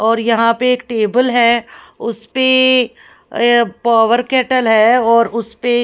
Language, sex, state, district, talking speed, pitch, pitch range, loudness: Hindi, female, Punjab, Pathankot, 145 wpm, 235 Hz, 230-250 Hz, -13 LUFS